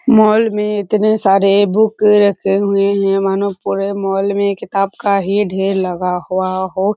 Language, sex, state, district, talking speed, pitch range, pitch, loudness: Hindi, female, Bihar, Kishanganj, 165 wpm, 195-205 Hz, 200 Hz, -15 LUFS